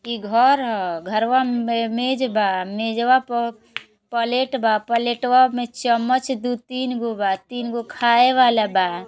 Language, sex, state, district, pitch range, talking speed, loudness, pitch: Bhojpuri, female, Uttar Pradesh, Gorakhpur, 220-250 Hz, 150 wpm, -20 LUFS, 235 Hz